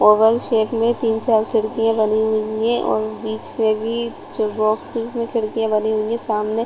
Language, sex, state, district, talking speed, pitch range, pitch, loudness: Hindi, female, Chhattisgarh, Rajnandgaon, 190 wpm, 215-230 Hz, 220 Hz, -19 LUFS